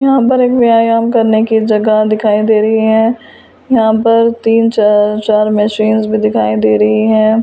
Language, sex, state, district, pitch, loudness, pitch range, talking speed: Hindi, female, Delhi, New Delhi, 220 Hz, -11 LUFS, 215-230 Hz, 185 wpm